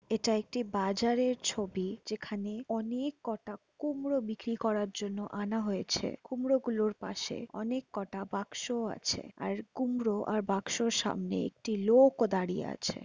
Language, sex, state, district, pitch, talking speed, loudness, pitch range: Bengali, female, West Bengal, Kolkata, 220 Hz, 135 wpm, -33 LUFS, 205-245 Hz